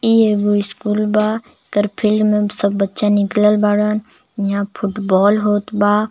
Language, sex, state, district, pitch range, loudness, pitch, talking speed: Bhojpuri, male, Jharkhand, Palamu, 205-215 Hz, -16 LUFS, 210 Hz, 145 wpm